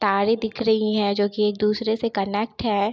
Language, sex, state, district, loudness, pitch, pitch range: Hindi, female, Bihar, Begusarai, -22 LUFS, 210 Hz, 205-220 Hz